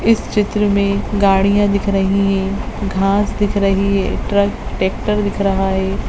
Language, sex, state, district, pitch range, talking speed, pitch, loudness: Hindi, female, Bihar, Madhepura, 195-205 Hz, 160 wpm, 200 Hz, -16 LUFS